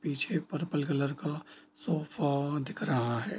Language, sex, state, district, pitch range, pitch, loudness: Hindi, male, Bihar, Darbhanga, 140-155 Hz, 150 Hz, -33 LUFS